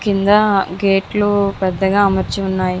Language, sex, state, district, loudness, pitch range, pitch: Telugu, female, Andhra Pradesh, Visakhapatnam, -16 LUFS, 190-205 Hz, 195 Hz